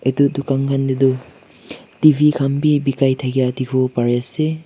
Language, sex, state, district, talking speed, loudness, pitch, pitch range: Nagamese, male, Nagaland, Kohima, 155 wpm, -17 LUFS, 135 Hz, 130-150 Hz